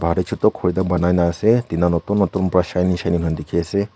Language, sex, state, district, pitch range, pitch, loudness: Nagamese, female, Nagaland, Kohima, 85-95 Hz, 90 Hz, -19 LUFS